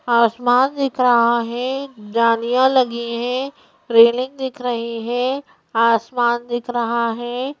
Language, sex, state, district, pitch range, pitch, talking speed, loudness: Hindi, female, Madhya Pradesh, Bhopal, 235-260 Hz, 240 Hz, 120 wpm, -18 LUFS